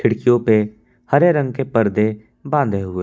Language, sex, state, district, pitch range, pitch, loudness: Hindi, male, Jharkhand, Palamu, 105-135 Hz, 115 Hz, -18 LUFS